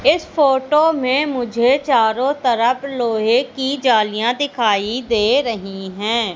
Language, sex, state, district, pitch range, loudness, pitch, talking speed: Hindi, female, Madhya Pradesh, Katni, 220-275 Hz, -17 LUFS, 245 Hz, 125 wpm